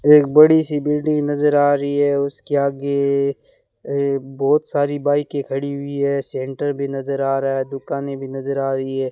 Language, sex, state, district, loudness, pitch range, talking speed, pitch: Hindi, male, Rajasthan, Bikaner, -19 LUFS, 135-145 Hz, 185 wpm, 140 Hz